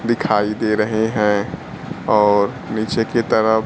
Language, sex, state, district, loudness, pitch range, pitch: Hindi, male, Bihar, Kaimur, -18 LUFS, 105-110 Hz, 110 Hz